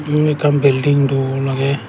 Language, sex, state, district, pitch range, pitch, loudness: Chakma, male, Tripura, Dhalai, 135-145 Hz, 140 Hz, -16 LUFS